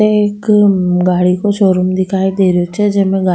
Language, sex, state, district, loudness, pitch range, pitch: Rajasthani, female, Rajasthan, Nagaur, -12 LUFS, 180-205 Hz, 190 Hz